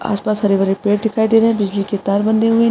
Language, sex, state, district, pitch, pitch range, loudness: Hindi, female, Maharashtra, Aurangabad, 210 Hz, 200-220 Hz, -16 LUFS